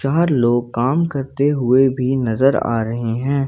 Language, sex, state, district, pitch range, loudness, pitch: Hindi, male, Jharkhand, Ranchi, 120-140 Hz, -17 LUFS, 130 Hz